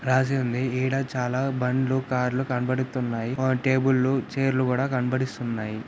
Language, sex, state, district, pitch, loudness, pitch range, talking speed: Telugu, male, Andhra Pradesh, Anantapur, 130 Hz, -25 LUFS, 125-130 Hz, 155 wpm